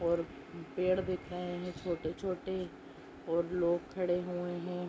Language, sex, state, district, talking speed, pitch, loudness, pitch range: Hindi, female, Uttar Pradesh, Deoria, 145 wpm, 175 Hz, -36 LUFS, 170-180 Hz